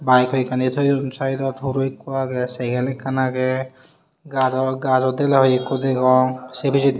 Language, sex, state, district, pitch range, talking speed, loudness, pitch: Chakma, male, Tripura, Unakoti, 130-135 Hz, 145 wpm, -20 LUFS, 130 Hz